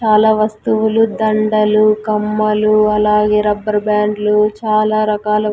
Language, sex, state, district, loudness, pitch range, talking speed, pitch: Telugu, female, Andhra Pradesh, Sri Satya Sai, -14 LUFS, 210-215 Hz, 100 wpm, 215 Hz